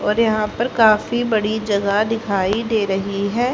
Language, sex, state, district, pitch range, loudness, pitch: Hindi, female, Haryana, Charkhi Dadri, 200-225 Hz, -18 LUFS, 215 Hz